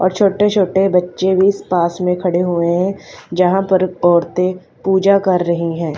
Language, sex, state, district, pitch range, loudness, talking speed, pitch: Hindi, female, Haryana, Charkhi Dadri, 175-190 Hz, -15 LUFS, 170 wpm, 185 Hz